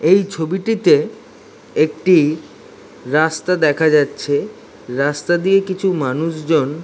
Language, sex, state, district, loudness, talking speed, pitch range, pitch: Bengali, male, West Bengal, Dakshin Dinajpur, -17 LUFS, 95 wpm, 150-185 Hz, 160 Hz